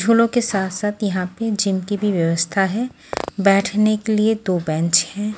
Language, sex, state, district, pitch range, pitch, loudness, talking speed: Hindi, female, Haryana, Jhajjar, 185-215 Hz, 200 Hz, -19 LUFS, 190 wpm